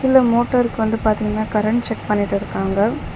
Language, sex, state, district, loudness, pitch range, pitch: Tamil, female, Tamil Nadu, Chennai, -19 LUFS, 210-240 Hz, 220 Hz